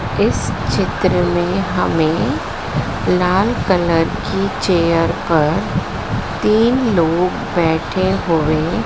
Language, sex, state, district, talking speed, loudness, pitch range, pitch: Hindi, female, Madhya Pradesh, Dhar, 90 wpm, -17 LUFS, 165-185 Hz, 175 Hz